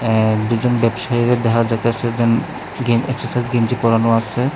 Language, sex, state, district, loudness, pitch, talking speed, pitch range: Bengali, male, Tripura, West Tripura, -17 LUFS, 115 Hz, 145 wpm, 115-120 Hz